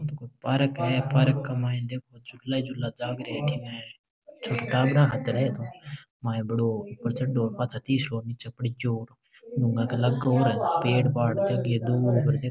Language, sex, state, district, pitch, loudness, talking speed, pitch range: Marwari, male, Rajasthan, Nagaur, 125 Hz, -27 LUFS, 155 wpm, 120-135 Hz